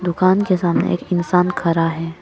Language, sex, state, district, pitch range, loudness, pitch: Hindi, female, Arunachal Pradesh, Papum Pare, 170-185 Hz, -18 LUFS, 175 Hz